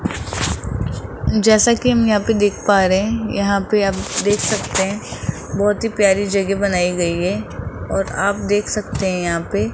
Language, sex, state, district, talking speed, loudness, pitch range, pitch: Hindi, male, Rajasthan, Jaipur, 185 wpm, -18 LUFS, 150-205 Hz, 195 Hz